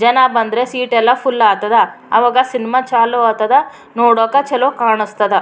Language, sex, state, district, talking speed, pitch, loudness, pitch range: Kannada, female, Karnataka, Raichur, 145 wpm, 240 Hz, -13 LUFS, 225-255 Hz